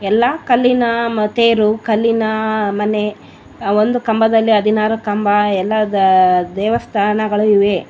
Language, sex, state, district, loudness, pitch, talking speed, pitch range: Kannada, female, Karnataka, Bellary, -15 LUFS, 215 Hz, 105 wpm, 205-225 Hz